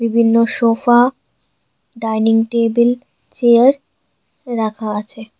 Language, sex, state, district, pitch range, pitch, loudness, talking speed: Bengali, female, West Bengal, Alipurduar, 225-240 Hz, 230 Hz, -15 LUFS, 80 wpm